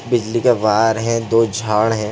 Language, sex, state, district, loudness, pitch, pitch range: Hindi, male, Chhattisgarh, Sarguja, -16 LUFS, 115 Hz, 110-115 Hz